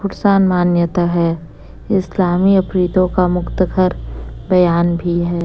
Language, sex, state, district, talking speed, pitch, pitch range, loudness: Hindi, female, Chhattisgarh, Raipur, 100 wpm, 180 Hz, 170-185 Hz, -15 LUFS